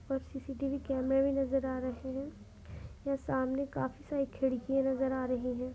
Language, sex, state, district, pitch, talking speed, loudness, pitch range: Hindi, female, Uttar Pradesh, Deoria, 270 Hz, 175 wpm, -34 LUFS, 260-275 Hz